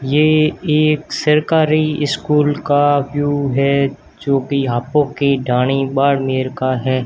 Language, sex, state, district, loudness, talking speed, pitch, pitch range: Hindi, male, Rajasthan, Barmer, -16 LUFS, 130 wpm, 145 Hz, 135-150 Hz